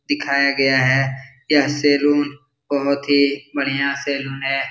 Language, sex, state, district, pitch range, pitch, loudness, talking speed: Hindi, male, Bihar, Jahanabad, 135-145 Hz, 140 Hz, -18 LUFS, 125 wpm